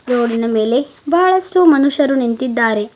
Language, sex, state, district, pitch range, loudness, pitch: Kannada, female, Karnataka, Bidar, 230-295 Hz, -14 LUFS, 255 Hz